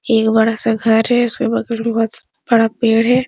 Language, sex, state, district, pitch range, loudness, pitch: Hindi, female, Bihar, Supaul, 225-235 Hz, -15 LUFS, 230 Hz